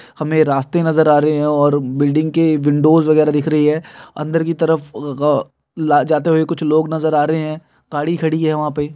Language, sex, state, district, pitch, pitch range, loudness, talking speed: Hindi, male, Uttar Pradesh, Hamirpur, 155 Hz, 150-160 Hz, -16 LUFS, 215 wpm